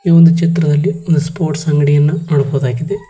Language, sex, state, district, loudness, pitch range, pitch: Kannada, male, Karnataka, Koppal, -13 LUFS, 145-170 Hz, 155 Hz